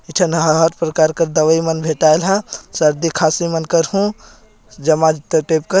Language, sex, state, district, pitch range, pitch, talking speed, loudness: Hindi, male, Chhattisgarh, Jashpur, 155-170 Hz, 165 Hz, 165 wpm, -16 LUFS